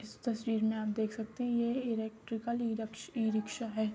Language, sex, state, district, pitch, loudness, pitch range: Hindi, female, Jharkhand, Sahebganj, 220 Hz, -35 LUFS, 220-235 Hz